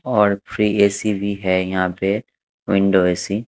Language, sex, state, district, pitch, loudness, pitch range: Hindi, male, Haryana, Charkhi Dadri, 100 Hz, -19 LUFS, 95-105 Hz